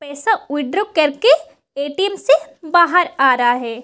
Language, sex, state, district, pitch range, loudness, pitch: Hindi, female, Bihar, Kishanganj, 275-360 Hz, -16 LUFS, 300 Hz